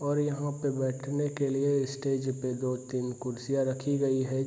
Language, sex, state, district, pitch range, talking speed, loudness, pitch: Hindi, male, Bihar, Saharsa, 130-140 Hz, 175 wpm, -31 LUFS, 135 Hz